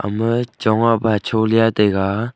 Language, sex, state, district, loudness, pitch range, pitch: Wancho, male, Arunachal Pradesh, Longding, -17 LUFS, 105-115 Hz, 110 Hz